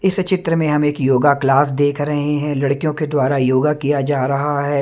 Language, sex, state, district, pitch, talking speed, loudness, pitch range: Hindi, male, Maharashtra, Mumbai Suburban, 145 Hz, 225 wpm, -17 LUFS, 140-150 Hz